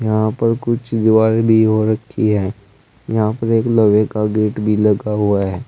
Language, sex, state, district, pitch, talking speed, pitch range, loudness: Hindi, male, Uttar Pradesh, Saharanpur, 110 Hz, 160 wpm, 105-115 Hz, -16 LUFS